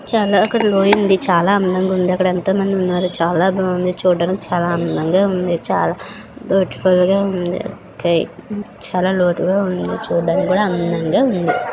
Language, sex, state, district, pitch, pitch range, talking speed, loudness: Telugu, female, Andhra Pradesh, Srikakulam, 185 Hz, 175-195 Hz, 140 wpm, -17 LUFS